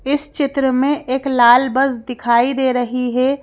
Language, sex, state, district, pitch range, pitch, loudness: Hindi, female, Madhya Pradesh, Bhopal, 250-275 Hz, 265 Hz, -16 LUFS